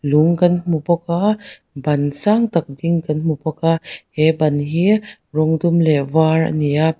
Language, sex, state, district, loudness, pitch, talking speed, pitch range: Mizo, female, Mizoram, Aizawl, -17 LUFS, 160 Hz, 195 wpm, 150-170 Hz